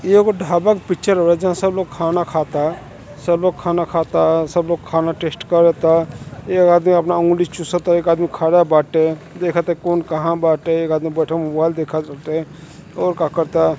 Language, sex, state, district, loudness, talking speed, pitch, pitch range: Bhojpuri, male, Uttar Pradesh, Gorakhpur, -17 LUFS, 185 wpm, 165 Hz, 160-175 Hz